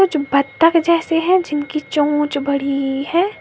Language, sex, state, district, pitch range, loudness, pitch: Hindi, female, Uttar Pradesh, Lalitpur, 280-335 Hz, -17 LUFS, 295 Hz